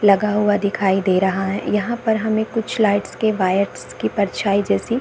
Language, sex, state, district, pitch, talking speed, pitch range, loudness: Hindi, female, Bihar, Saharsa, 205 Hz, 205 wpm, 195-220 Hz, -19 LUFS